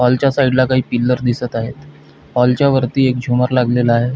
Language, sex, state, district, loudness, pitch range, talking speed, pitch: Marathi, male, Maharashtra, Pune, -15 LUFS, 125-130 Hz, 200 wpm, 125 Hz